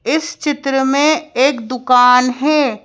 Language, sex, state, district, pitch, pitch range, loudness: Hindi, female, Madhya Pradesh, Bhopal, 270 Hz, 250-300 Hz, -14 LUFS